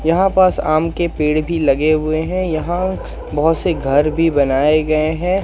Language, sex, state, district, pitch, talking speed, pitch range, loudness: Hindi, male, Madhya Pradesh, Katni, 160 Hz, 185 wpm, 155-175 Hz, -16 LUFS